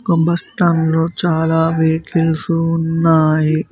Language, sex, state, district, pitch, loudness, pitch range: Telugu, male, Telangana, Mahabubabad, 165 Hz, -15 LUFS, 160-165 Hz